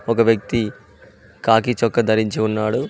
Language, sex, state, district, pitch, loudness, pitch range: Telugu, male, Telangana, Mahabubabad, 110 Hz, -19 LUFS, 110-115 Hz